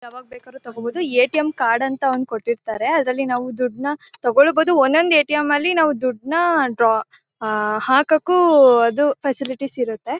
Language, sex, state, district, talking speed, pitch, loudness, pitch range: Kannada, female, Karnataka, Mysore, 135 wpm, 265 Hz, -18 LUFS, 245-300 Hz